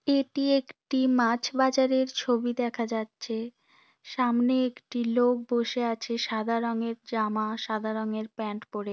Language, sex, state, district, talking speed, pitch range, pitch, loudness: Bengali, female, West Bengal, Dakshin Dinajpur, 130 wpm, 225-255 Hz, 235 Hz, -28 LUFS